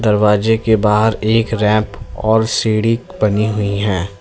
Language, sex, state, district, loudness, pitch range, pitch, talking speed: Hindi, male, Uttar Pradesh, Lalitpur, -15 LUFS, 105-110 Hz, 110 Hz, 140 wpm